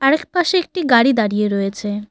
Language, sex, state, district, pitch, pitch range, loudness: Bengali, female, West Bengal, Cooch Behar, 235 Hz, 210-320 Hz, -17 LUFS